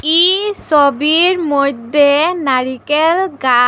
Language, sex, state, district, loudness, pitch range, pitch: Bengali, female, Assam, Hailakandi, -13 LUFS, 280-340 Hz, 295 Hz